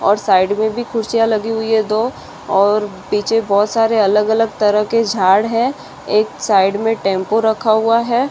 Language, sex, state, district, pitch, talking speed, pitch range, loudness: Hindi, female, Maharashtra, Aurangabad, 220 Hz, 190 wpm, 205-225 Hz, -15 LUFS